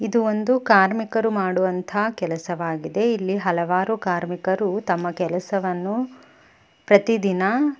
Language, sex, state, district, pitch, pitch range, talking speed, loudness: Kannada, female, Karnataka, Bellary, 195 Hz, 180-225 Hz, 90 wpm, -22 LUFS